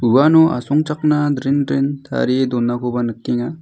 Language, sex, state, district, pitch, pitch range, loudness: Garo, male, Meghalaya, South Garo Hills, 135 Hz, 120-150 Hz, -17 LUFS